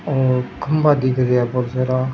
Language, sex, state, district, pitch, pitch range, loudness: Rajasthani, male, Rajasthan, Churu, 130 Hz, 125-135 Hz, -18 LUFS